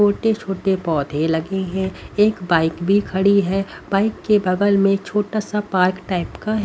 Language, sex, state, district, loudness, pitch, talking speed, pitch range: Hindi, female, Haryana, Rohtak, -19 LUFS, 195 Hz, 170 wpm, 185-205 Hz